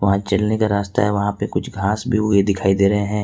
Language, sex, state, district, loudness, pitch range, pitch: Hindi, male, Jharkhand, Ranchi, -19 LUFS, 100-105 Hz, 100 Hz